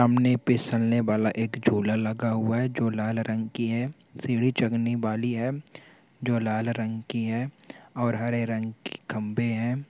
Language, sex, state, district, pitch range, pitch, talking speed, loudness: Hindi, male, Rajasthan, Nagaur, 110-120 Hz, 115 Hz, 170 wpm, -27 LUFS